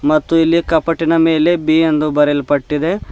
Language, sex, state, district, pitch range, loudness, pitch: Kannada, male, Karnataka, Bidar, 150-165 Hz, -14 LUFS, 160 Hz